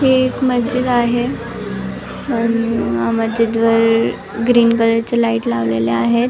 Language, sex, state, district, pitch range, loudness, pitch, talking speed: Marathi, female, Maharashtra, Nagpur, 225-240 Hz, -16 LUFS, 230 Hz, 125 wpm